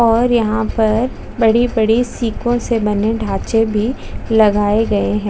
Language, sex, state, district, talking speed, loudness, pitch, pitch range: Hindi, female, Chhattisgarh, Jashpur, 145 wpm, -16 LUFS, 225 Hz, 215-235 Hz